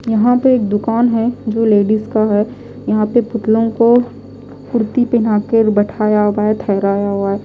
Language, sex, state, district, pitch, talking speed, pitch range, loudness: Hindi, female, Delhi, New Delhi, 220 Hz, 175 wpm, 210-230 Hz, -14 LUFS